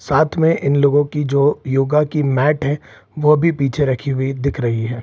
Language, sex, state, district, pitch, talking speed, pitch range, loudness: Hindi, male, Bihar, Saran, 140 Hz, 215 wpm, 135-150 Hz, -17 LUFS